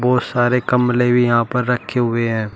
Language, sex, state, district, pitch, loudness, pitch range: Hindi, male, Uttar Pradesh, Shamli, 125 Hz, -17 LUFS, 120-125 Hz